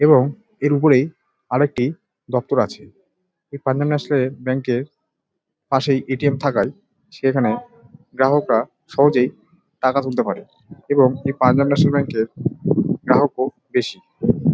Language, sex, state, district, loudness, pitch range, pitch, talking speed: Bengali, male, West Bengal, Dakshin Dinajpur, -19 LUFS, 130-150 Hz, 140 Hz, 130 wpm